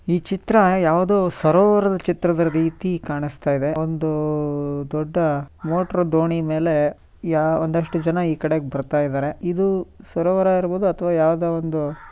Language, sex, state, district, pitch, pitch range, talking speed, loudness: Kannada, male, Karnataka, Shimoga, 165 Hz, 155-180 Hz, 125 wpm, -20 LUFS